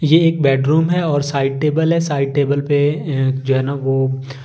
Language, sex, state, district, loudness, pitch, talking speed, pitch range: Hindi, male, Delhi, New Delhi, -17 LUFS, 140 Hz, 215 wpm, 135-150 Hz